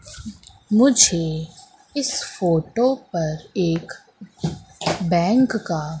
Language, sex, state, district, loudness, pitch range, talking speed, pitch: Hindi, female, Madhya Pradesh, Katni, -20 LUFS, 160-245 Hz, 70 wpm, 175 Hz